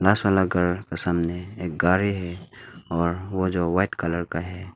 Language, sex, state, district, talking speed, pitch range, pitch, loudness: Hindi, male, Arunachal Pradesh, Longding, 190 wpm, 85-95 Hz, 90 Hz, -24 LUFS